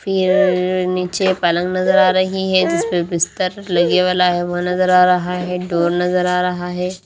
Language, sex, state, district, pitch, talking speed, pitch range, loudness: Hindi, female, Haryana, Rohtak, 180 Hz, 195 wpm, 180-185 Hz, -16 LUFS